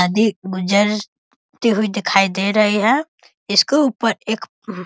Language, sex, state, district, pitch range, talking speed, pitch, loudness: Hindi, male, Bihar, East Champaran, 200-225 Hz, 135 wpm, 210 Hz, -17 LUFS